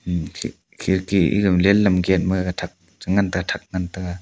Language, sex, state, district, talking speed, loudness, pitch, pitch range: Wancho, male, Arunachal Pradesh, Longding, 170 wpm, -20 LUFS, 95 Hz, 90-95 Hz